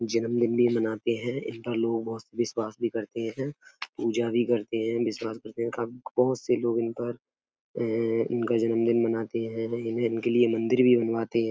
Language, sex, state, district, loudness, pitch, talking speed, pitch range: Hindi, male, Uttar Pradesh, Etah, -27 LUFS, 115 Hz, 180 wpm, 115-120 Hz